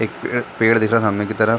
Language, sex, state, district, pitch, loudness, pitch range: Hindi, male, Chhattisgarh, Bastar, 110 Hz, -18 LUFS, 110-115 Hz